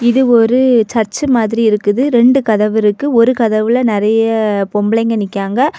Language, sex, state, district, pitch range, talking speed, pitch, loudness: Tamil, female, Tamil Nadu, Kanyakumari, 215-245 Hz, 135 wpm, 225 Hz, -12 LUFS